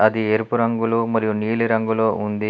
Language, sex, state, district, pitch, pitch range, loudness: Telugu, male, Telangana, Adilabad, 110 Hz, 110-115 Hz, -20 LUFS